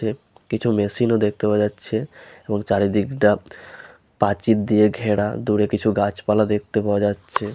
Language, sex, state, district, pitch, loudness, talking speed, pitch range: Bengali, male, West Bengal, Malda, 105 Hz, -21 LUFS, 150 wpm, 105-110 Hz